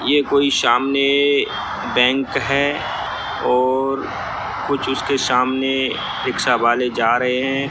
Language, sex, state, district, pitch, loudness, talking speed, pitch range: Hindi, male, Bihar, Sitamarhi, 135 Hz, -18 LUFS, 110 wpm, 125-140 Hz